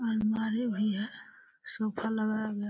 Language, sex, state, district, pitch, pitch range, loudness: Hindi, female, Uttar Pradesh, Deoria, 220 Hz, 215-230 Hz, -32 LUFS